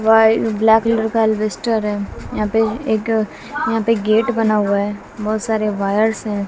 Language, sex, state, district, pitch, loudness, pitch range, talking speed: Hindi, female, Bihar, West Champaran, 220 Hz, -17 LUFS, 210-225 Hz, 165 wpm